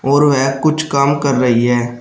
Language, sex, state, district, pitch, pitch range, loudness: Hindi, male, Uttar Pradesh, Shamli, 140 Hz, 125-145 Hz, -14 LUFS